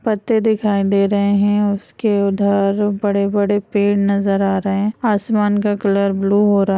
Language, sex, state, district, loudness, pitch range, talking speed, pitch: Hindi, female, Bihar, Madhepura, -17 LUFS, 200-210 Hz, 185 wpm, 200 Hz